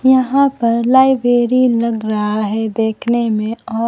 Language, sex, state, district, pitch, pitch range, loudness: Hindi, female, Bihar, Kaimur, 235 Hz, 220-255 Hz, -15 LUFS